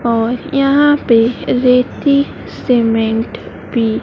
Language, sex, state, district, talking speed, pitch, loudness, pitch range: Hindi, female, Madhya Pradesh, Dhar, 90 wpm, 250 Hz, -14 LUFS, 230-275 Hz